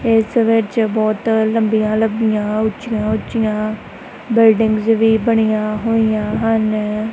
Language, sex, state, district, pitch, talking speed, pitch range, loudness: Punjabi, female, Punjab, Kapurthala, 220 Hz, 100 wpm, 215-225 Hz, -16 LUFS